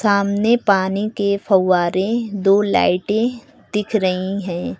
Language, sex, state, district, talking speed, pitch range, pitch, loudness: Hindi, female, Uttar Pradesh, Lucknow, 110 wpm, 190-215 Hz, 200 Hz, -18 LUFS